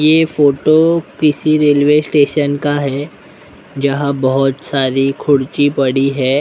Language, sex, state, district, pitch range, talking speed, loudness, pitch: Hindi, male, Maharashtra, Mumbai Suburban, 135-150 Hz, 130 wpm, -14 LUFS, 145 Hz